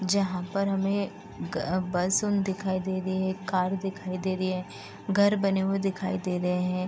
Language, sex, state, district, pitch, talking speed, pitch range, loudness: Hindi, female, Uttar Pradesh, Deoria, 190 Hz, 165 wpm, 185-195 Hz, -28 LUFS